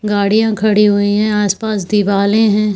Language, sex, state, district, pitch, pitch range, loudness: Hindi, female, Chhattisgarh, Bilaspur, 210 Hz, 205-215 Hz, -13 LUFS